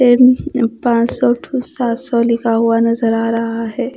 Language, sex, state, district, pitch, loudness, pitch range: Hindi, female, Bihar, Katihar, 235 Hz, -15 LUFS, 230-245 Hz